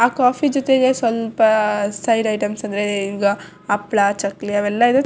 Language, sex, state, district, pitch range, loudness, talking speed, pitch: Kannada, female, Karnataka, Shimoga, 205-240 Hz, -18 LUFS, 130 wpm, 215 Hz